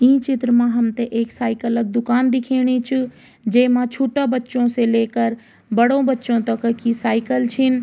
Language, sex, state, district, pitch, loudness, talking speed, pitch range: Garhwali, female, Uttarakhand, Tehri Garhwal, 240 Hz, -19 LUFS, 160 wpm, 230-255 Hz